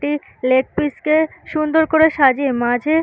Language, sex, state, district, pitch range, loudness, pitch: Bengali, female, West Bengal, North 24 Parganas, 260-315 Hz, -17 LUFS, 295 Hz